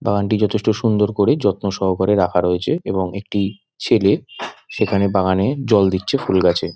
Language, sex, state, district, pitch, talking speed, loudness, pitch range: Bengali, male, West Bengal, Dakshin Dinajpur, 100 Hz, 150 wpm, -18 LUFS, 95-105 Hz